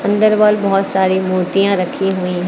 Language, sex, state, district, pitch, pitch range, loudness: Hindi, female, Uttar Pradesh, Lucknow, 195 Hz, 185-205 Hz, -15 LUFS